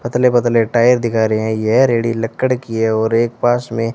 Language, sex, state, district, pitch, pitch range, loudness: Hindi, male, Rajasthan, Bikaner, 115 Hz, 115-120 Hz, -15 LUFS